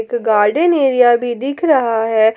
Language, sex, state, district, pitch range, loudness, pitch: Hindi, female, Jharkhand, Palamu, 225-295 Hz, -14 LUFS, 245 Hz